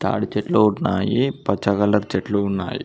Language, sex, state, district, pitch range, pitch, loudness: Telugu, male, Telangana, Mahabubabad, 100-110 Hz, 105 Hz, -20 LUFS